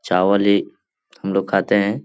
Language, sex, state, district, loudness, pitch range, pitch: Hindi, male, Bihar, Lakhisarai, -18 LUFS, 95-100 Hz, 100 Hz